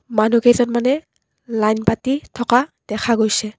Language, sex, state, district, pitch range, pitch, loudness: Assamese, female, Assam, Kamrup Metropolitan, 220-245 Hz, 235 Hz, -18 LUFS